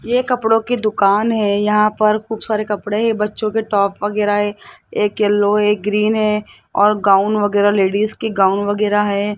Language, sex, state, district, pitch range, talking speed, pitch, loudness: Hindi, male, Rajasthan, Jaipur, 205-215 Hz, 185 wpm, 210 Hz, -16 LUFS